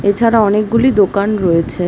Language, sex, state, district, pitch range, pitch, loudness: Bengali, female, West Bengal, Jhargram, 190-225 Hz, 205 Hz, -13 LUFS